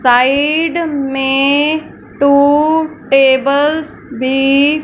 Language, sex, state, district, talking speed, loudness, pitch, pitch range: Hindi, female, Punjab, Fazilka, 75 wpm, -12 LUFS, 280 Hz, 270-310 Hz